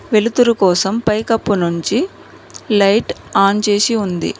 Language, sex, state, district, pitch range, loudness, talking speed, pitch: Telugu, female, Telangana, Mahabubabad, 195-225 Hz, -15 LUFS, 110 wpm, 210 Hz